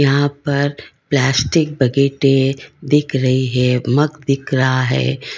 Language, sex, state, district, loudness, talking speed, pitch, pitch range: Hindi, female, Karnataka, Bangalore, -16 LUFS, 135 wpm, 135 Hz, 130-145 Hz